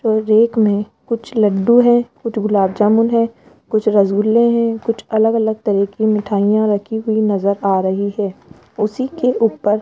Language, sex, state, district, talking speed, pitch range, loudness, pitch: Hindi, female, Rajasthan, Jaipur, 170 wpm, 205-230 Hz, -16 LUFS, 220 Hz